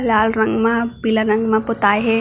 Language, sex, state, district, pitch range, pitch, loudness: Chhattisgarhi, female, Chhattisgarh, Bilaspur, 220-230 Hz, 225 Hz, -17 LUFS